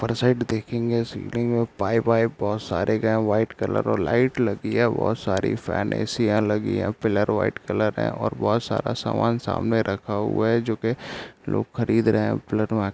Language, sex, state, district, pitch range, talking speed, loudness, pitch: Hindi, male, Jharkhand, Sahebganj, 105-115 Hz, 210 wpm, -23 LUFS, 110 Hz